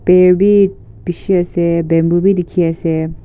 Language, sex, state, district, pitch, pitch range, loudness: Nagamese, female, Nagaland, Kohima, 175 Hz, 165-185 Hz, -13 LUFS